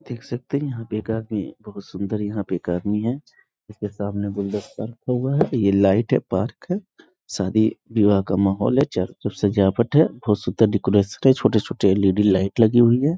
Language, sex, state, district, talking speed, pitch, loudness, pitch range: Hindi, male, Bihar, East Champaran, 200 wpm, 105 Hz, -21 LUFS, 100-120 Hz